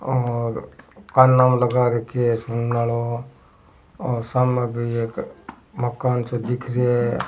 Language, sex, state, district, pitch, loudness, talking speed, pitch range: Rajasthani, male, Rajasthan, Churu, 120 Hz, -21 LUFS, 125 wpm, 115-125 Hz